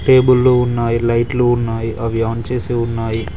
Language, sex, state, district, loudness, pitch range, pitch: Telugu, male, Telangana, Mahabubabad, -16 LUFS, 115-125 Hz, 115 Hz